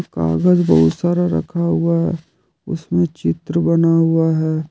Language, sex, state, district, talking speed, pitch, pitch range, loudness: Hindi, male, Jharkhand, Deoghar, 140 wpm, 165 Hz, 150-170 Hz, -16 LUFS